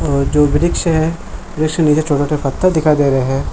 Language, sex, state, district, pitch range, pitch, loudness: Hindi, male, Jharkhand, Jamtara, 140-160 Hz, 150 Hz, -15 LUFS